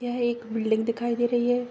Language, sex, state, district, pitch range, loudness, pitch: Hindi, female, Uttar Pradesh, Gorakhpur, 230-240 Hz, -26 LUFS, 240 Hz